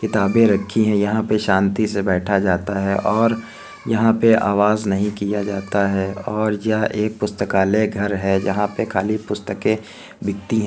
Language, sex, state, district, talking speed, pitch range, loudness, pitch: Hindi, male, Uttar Pradesh, Hamirpur, 175 wpm, 100-110 Hz, -19 LUFS, 105 Hz